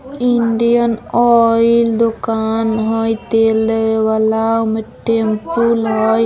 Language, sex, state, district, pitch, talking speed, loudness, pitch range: Bajjika, female, Bihar, Vaishali, 225 Hz, 95 wpm, -15 LUFS, 220-235 Hz